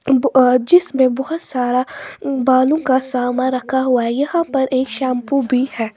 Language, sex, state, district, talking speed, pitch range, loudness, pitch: Hindi, female, Bihar, Kaimur, 150 wpm, 250-275 Hz, -16 LUFS, 260 Hz